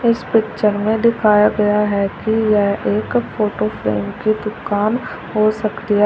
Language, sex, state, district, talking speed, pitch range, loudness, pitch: Hindi, female, Uttar Pradesh, Shamli, 160 wpm, 205-220 Hz, -17 LUFS, 215 Hz